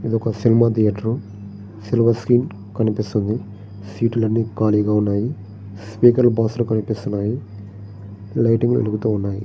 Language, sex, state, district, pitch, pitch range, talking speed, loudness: Telugu, male, Andhra Pradesh, Srikakulam, 110 Hz, 100-115 Hz, 120 wpm, -19 LUFS